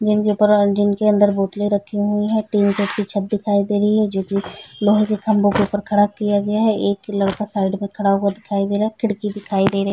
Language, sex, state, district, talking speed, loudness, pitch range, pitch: Hindi, female, Chhattisgarh, Rajnandgaon, 230 wpm, -18 LUFS, 200-210 Hz, 205 Hz